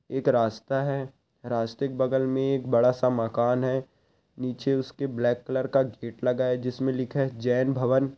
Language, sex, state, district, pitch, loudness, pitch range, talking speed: Hindi, male, Rajasthan, Nagaur, 130 Hz, -26 LUFS, 125-135 Hz, 175 wpm